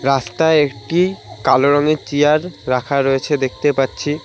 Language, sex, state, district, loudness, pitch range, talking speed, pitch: Bengali, male, West Bengal, Alipurduar, -16 LUFS, 135-155 Hz, 125 wpm, 145 Hz